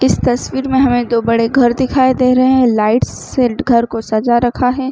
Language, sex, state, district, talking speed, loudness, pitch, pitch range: Hindi, female, Chhattisgarh, Bilaspur, 220 wpm, -13 LUFS, 245 Hz, 235-260 Hz